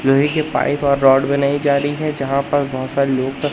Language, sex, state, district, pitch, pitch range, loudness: Hindi, male, Madhya Pradesh, Katni, 140 Hz, 135-145 Hz, -17 LUFS